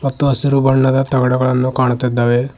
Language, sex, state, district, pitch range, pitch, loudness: Kannada, male, Karnataka, Bidar, 125-135 Hz, 130 Hz, -15 LUFS